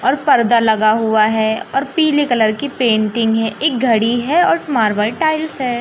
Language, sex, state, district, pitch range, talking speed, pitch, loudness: Hindi, male, Madhya Pradesh, Katni, 220-285 Hz, 185 wpm, 240 Hz, -15 LUFS